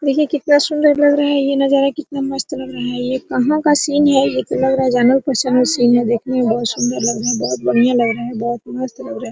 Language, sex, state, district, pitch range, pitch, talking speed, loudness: Hindi, female, Bihar, Araria, 240-280 Hz, 260 Hz, 275 wpm, -16 LUFS